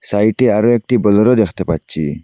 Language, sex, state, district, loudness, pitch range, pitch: Bengali, male, Assam, Hailakandi, -14 LUFS, 85-120 Hz, 105 Hz